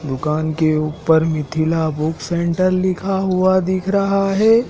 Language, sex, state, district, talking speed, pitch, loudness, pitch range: Hindi, male, Madhya Pradesh, Dhar, 140 wpm, 170 Hz, -18 LUFS, 155-185 Hz